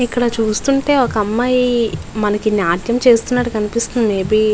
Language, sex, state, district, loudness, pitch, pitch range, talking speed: Telugu, female, Andhra Pradesh, Visakhapatnam, -16 LUFS, 230 Hz, 215-245 Hz, 130 wpm